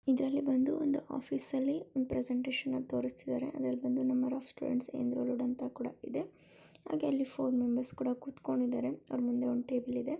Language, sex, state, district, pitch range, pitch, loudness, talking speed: Kannada, female, Karnataka, Shimoga, 245-270 Hz, 255 Hz, -35 LUFS, 170 wpm